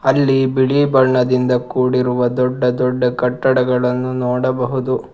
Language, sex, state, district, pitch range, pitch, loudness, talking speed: Kannada, male, Karnataka, Bangalore, 125-130 Hz, 125 Hz, -16 LUFS, 95 wpm